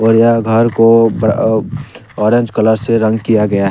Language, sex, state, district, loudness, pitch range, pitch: Hindi, male, Jharkhand, Deoghar, -12 LUFS, 110-115 Hz, 110 Hz